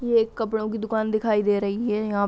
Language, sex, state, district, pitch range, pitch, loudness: Hindi, female, Uttar Pradesh, Hamirpur, 210-225 Hz, 220 Hz, -24 LUFS